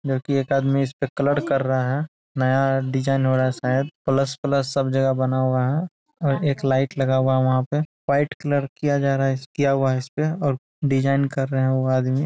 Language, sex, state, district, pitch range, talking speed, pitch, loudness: Hindi, male, Bihar, Araria, 130-140 Hz, 240 wpm, 135 Hz, -22 LUFS